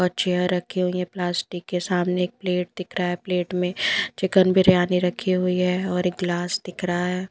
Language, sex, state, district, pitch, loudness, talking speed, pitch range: Hindi, female, Punjab, Pathankot, 180 Hz, -23 LUFS, 215 wpm, 180-185 Hz